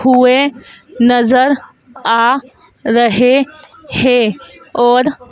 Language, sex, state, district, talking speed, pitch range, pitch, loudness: Hindi, female, Madhya Pradesh, Dhar, 70 wpm, 240-270 Hz, 250 Hz, -12 LUFS